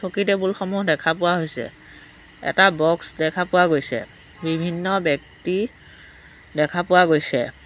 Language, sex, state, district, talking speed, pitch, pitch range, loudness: Assamese, female, Assam, Sonitpur, 120 wpm, 175 Hz, 155-190 Hz, -21 LUFS